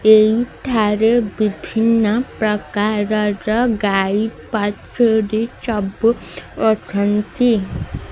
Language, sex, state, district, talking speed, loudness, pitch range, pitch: Odia, female, Odisha, Sambalpur, 65 wpm, -18 LUFS, 210-230 Hz, 215 Hz